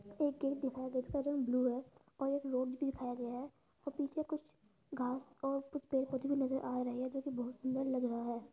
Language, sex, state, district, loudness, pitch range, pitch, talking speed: Hindi, female, Uttar Pradesh, Budaun, -39 LUFS, 250-280 Hz, 265 Hz, 255 wpm